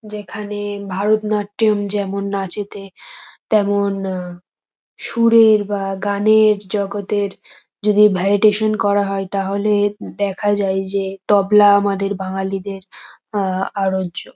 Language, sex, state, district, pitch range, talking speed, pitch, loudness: Bengali, female, West Bengal, North 24 Parganas, 195-210 Hz, 95 wpm, 200 Hz, -18 LUFS